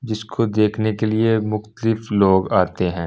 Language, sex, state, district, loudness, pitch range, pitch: Hindi, male, Delhi, New Delhi, -19 LUFS, 100-110 Hz, 110 Hz